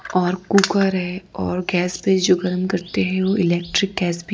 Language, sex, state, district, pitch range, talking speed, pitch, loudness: Hindi, female, Gujarat, Valsad, 180-190 Hz, 195 wpm, 185 Hz, -20 LUFS